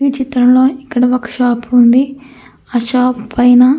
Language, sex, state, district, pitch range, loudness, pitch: Telugu, female, Andhra Pradesh, Anantapur, 245-265 Hz, -12 LUFS, 250 Hz